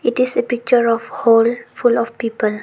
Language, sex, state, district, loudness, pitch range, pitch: English, female, Arunachal Pradesh, Longding, -17 LUFS, 230-245 Hz, 235 Hz